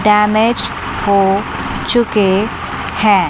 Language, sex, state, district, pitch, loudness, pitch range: Hindi, female, Chandigarh, Chandigarh, 210 Hz, -14 LUFS, 195-220 Hz